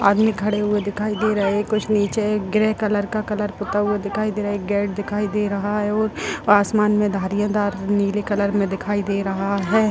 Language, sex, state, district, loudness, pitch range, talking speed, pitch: Hindi, female, Bihar, Purnia, -21 LUFS, 200-210 Hz, 225 wpm, 205 Hz